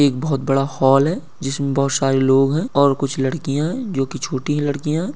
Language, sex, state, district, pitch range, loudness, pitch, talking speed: Hindi, male, Uttarakhand, Uttarkashi, 135-150 Hz, -19 LUFS, 140 Hz, 220 wpm